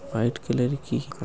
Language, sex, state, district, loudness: Hindi, male, Maharashtra, Aurangabad, -27 LUFS